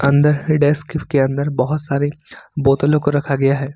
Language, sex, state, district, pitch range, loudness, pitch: Hindi, male, Jharkhand, Ranchi, 140-150 Hz, -17 LUFS, 145 Hz